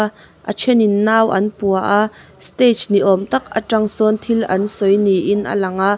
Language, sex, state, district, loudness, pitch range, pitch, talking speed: Mizo, female, Mizoram, Aizawl, -16 LUFS, 195-220 Hz, 205 Hz, 190 wpm